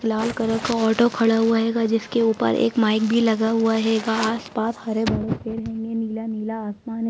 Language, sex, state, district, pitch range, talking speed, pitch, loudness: Hindi, female, Bihar, Saran, 220-230 Hz, 185 wpm, 225 Hz, -22 LUFS